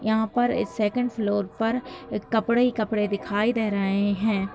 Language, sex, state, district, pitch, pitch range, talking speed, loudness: Hindi, female, Bihar, Bhagalpur, 220 Hz, 205-235 Hz, 185 wpm, -25 LUFS